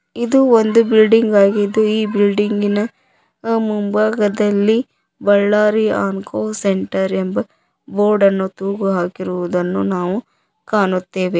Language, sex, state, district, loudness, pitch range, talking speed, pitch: Kannada, female, Karnataka, Koppal, -16 LUFS, 190-215 Hz, 85 wpm, 205 Hz